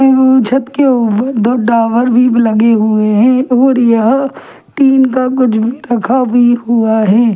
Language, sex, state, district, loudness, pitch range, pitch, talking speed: Hindi, female, Delhi, New Delhi, -10 LUFS, 230-260 Hz, 240 Hz, 155 wpm